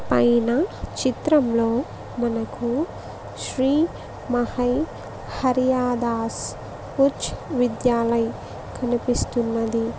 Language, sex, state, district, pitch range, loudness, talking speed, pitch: Telugu, female, Andhra Pradesh, Visakhapatnam, 235-260 Hz, -23 LUFS, 55 wpm, 245 Hz